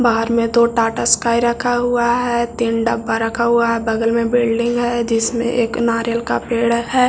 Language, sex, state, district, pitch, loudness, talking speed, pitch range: Hindi, male, Bihar, Jahanabad, 235 Hz, -17 LUFS, 195 wpm, 230-240 Hz